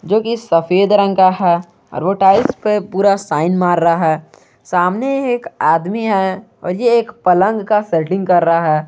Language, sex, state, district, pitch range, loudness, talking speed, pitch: Hindi, male, Jharkhand, Garhwa, 170-210 Hz, -15 LUFS, 195 wpm, 190 Hz